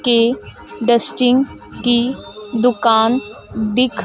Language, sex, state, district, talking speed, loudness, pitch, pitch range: Hindi, female, Madhya Pradesh, Dhar, 75 wpm, -16 LUFS, 240 Hz, 225-250 Hz